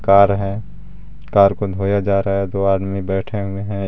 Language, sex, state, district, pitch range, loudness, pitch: Hindi, male, Jharkhand, Garhwa, 95-100 Hz, -18 LUFS, 100 Hz